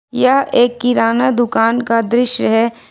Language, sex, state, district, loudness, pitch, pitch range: Hindi, female, Jharkhand, Ranchi, -14 LUFS, 240 Hz, 230-250 Hz